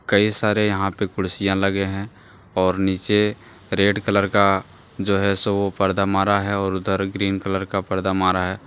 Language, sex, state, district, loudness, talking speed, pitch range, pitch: Hindi, male, Jharkhand, Deoghar, -21 LUFS, 185 wpm, 95-100 Hz, 100 Hz